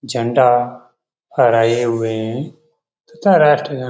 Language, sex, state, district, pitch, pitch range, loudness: Hindi, male, Bihar, Jamui, 125 Hz, 115-150 Hz, -15 LUFS